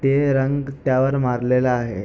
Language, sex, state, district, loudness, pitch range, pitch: Marathi, male, Maharashtra, Pune, -20 LUFS, 125-140 Hz, 130 Hz